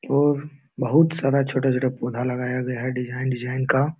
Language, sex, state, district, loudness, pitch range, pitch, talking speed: Hindi, male, Bihar, Jamui, -23 LUFS, 125-140 Hz, 130 Hz, 165 wpm